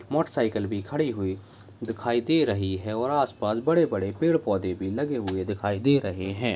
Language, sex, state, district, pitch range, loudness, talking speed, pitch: Hindi, male, Rajasthan, Nagaur, 100-140 Hz, -26 LUFS, 190 wpm, 110 Hz